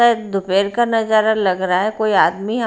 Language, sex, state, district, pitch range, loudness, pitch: Hindi, female, Haryana, Rohtak, 195-225 Hz, -17 LUFS, 215 Hz